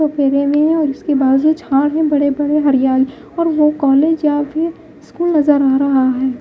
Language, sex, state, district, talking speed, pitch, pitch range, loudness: Hindi, female, Bihar, Katihar, 185 wpm, 290 Hz, 275-310 Hz, -14 LUFS